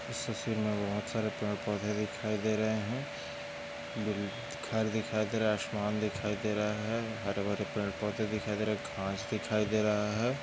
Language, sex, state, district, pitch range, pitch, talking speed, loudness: Hindi, male, Maharashtra, Aurangabad, 105-110 Hz, 105 Hz, 195 wpm, -34 LUFS